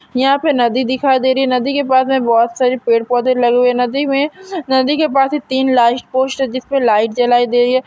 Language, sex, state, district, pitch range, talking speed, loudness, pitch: Hindi, female, Bihar, Gopalganj, 245-270 Hz, 230 wpm, -14 LUFS, 260 Hz